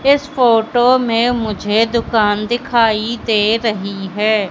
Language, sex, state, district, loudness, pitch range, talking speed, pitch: Hindi, female, Madhya Pradesh, Katni, -15 LUFS, 215-240 Hz, 120 wpm, 225 Hz